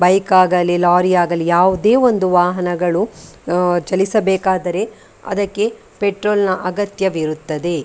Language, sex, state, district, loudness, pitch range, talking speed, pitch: Kannada, female, Karnataka, Dakshina Kannada, -16 LUFS, 175-200 Hz, 100 wpm, 185 Hz